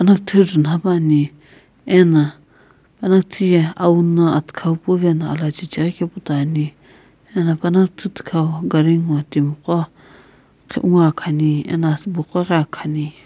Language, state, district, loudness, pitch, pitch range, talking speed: Sumi, Nagaland, Kohima, -17 LUFS, 165 Hz, 150-180 Hz, 130 wpm